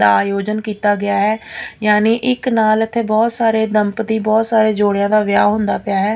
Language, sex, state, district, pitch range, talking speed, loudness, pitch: Punjabi, female, Punjab, Pathankot, 205-225 Hz, 195 wpm, -15 LUFS, 215 Hz